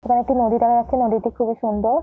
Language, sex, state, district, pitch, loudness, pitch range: Bengali, female, West Bengal, Jhargram, 235 Hz, -19 LUFS, 230-245 Hz